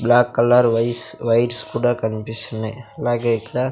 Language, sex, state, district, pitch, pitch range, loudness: Telugu, male, Andhra Pradesh, Sri Satya Sai, 120 Hz, 115-120 Hz, -19 LUFS